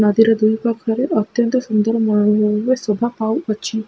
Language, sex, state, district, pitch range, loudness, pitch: Odia, female, Odisha, Khordha, 210-235 Hz, -17 LUFS, 220 Hz